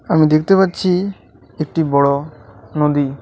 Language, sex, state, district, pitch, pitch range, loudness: Bengali, male, West Bengal, Alipurduar, 150 Hz, 140-165 Hz, -16 LUFS